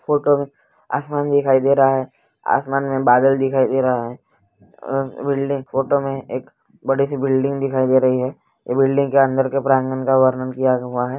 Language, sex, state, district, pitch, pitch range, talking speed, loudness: Hindi, male, West Bengal, Malda, 135 Hz, 130-140 Hz, 195 wpm, -18 LUFS